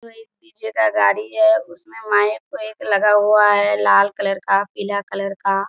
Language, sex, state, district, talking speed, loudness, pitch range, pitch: Hindi, female, Bihar, Kishanganj, 200 wpm, -17 LUFS, 195-225 Hz, 205 Hz